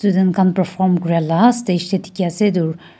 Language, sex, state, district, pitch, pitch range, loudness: Nagamese, female, Nagaland, Kohima, 185 Hz, 175-195 Hz, -17 LUFS